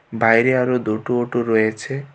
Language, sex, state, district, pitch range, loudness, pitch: Bengali, male, Tripura, West Tripura, 115-125 Hz, -18 LUFS, 120 Hz